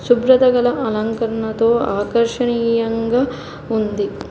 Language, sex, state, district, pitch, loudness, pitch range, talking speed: Telugu, female, Telangana, Hyderabad, 230 Hz, -17 LUFS, 225-245 Hz, 70 wpm